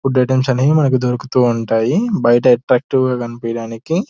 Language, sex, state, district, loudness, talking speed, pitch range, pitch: Telugu, male, Telangana, Nalgonda, -15 LUFS, 160 wpm, 120-135 Hz, 125 Hz